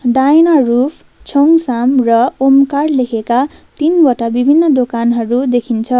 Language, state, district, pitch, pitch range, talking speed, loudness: Nepali, West Bengal, Darjeeling, 255 Hz, 240-285 Hz, 90 wpm, -12 LUFS